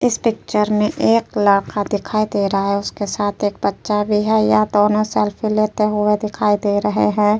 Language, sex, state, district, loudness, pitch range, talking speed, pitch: Hindi, female, Uttar Pradesh, Jyotiba Phule Nagar, -17 LUFS, 205-215 Hz, 195 wpm, 210 Hz